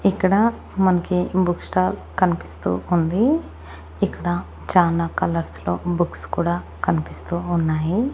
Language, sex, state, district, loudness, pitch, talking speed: Telugu, female, Andhra Pradesh, Annamaya, -21 LUFS, 175 Hz, 105 wpm